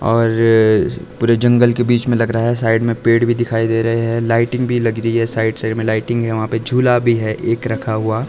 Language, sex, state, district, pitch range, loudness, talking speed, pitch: Hindi, male, Himachal Pradesh, Shimla, 115-120 Hz, -16 LUFS, 255 wpm, 115 Hz